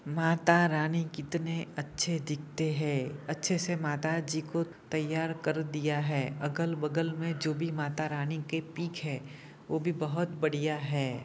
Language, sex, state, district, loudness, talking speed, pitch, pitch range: Hindi, male, Jharkhand, Jamtara, -32 LUFS, 160 wpm, 155 Hz, 150-165 Hz